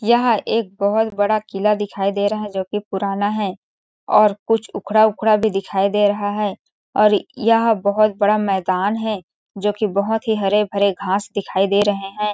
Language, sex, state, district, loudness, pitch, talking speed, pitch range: Hindi, female, Chhattisgarh, Balrampur, -19 LUFS, 205 Hz, 170 wpm, 200-215 Hz